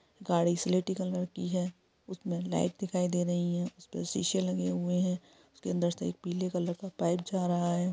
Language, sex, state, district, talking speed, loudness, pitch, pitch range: Hindi, female, Jharkhand, Sahebganj, 205 wpm, -32 LUFS, 175 Hz, 175-185 Hz